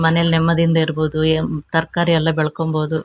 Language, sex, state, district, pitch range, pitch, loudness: Kannada, female, Karnataka, Shimoga, 155-165 Hz, 160 Hz, -17 LUFS